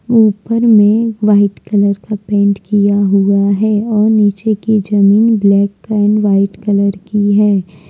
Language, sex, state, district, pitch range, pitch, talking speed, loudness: Hindi, female, Jharkhand, Deoghar, 200-215 Hz, 205 Hz, 145 wpm, -12 LUFS